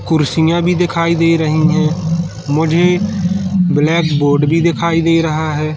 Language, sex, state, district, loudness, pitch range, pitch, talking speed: Hindi, male, Madhya Pradesh, Katni, -14 LUFS, 155-170 Hz, 165 Hz, 145 wpm